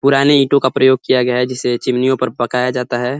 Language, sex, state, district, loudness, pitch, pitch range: Hindi, male, Uttar Pradesh, Ghazipur, -15 LUFS, 130 Hz, 125-130 Hz